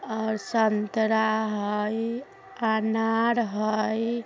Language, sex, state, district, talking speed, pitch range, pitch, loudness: Bajjika, male, Bihar, Vaishali, 70 wpm, 215-230 Hz, 220 Hz, -26 LUFS